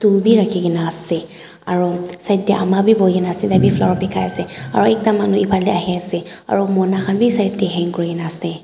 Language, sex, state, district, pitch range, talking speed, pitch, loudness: Nagamese, female, Nagaland, Dimapur, 175-200 Hz, 235 wpm, 190 Hz, -17 LUFS